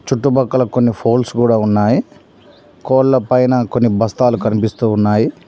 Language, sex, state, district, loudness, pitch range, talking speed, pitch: Telugu, male, Telangana, Mahabubabad, -14 LUFS, 110-130 Hz, 110 wpm, 120 Hz